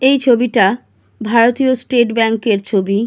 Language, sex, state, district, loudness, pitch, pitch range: Bengali, female, West Bengal, Kolkata, -14 LUFS, 235 Hz, 220-250 Hz